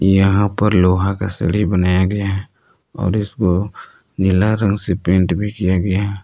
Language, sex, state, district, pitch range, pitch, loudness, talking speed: Hindi, male, Jharkhand, Palamu, 90-100 Hz, 95 Hz, -17 LUFS, 175 wpm